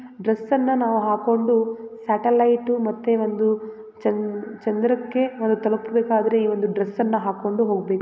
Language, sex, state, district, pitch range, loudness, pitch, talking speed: Kannada, female, Karnataka, Gulbarga, 215-235 Hz, -22 LUFS, 220 Hz, 120 wpm